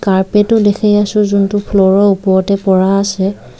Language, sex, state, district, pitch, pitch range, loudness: Assamese, female, Assam, Kamrup Metropolitan, 200 Hz, 190-205 Hz, -12 LUFS